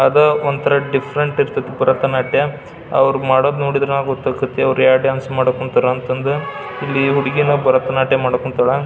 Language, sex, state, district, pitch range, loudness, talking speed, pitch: Kannada, male, Karnataka, Belgaum, 130-140 Hz, -16 LUFS, 135 wpm, 135 Hz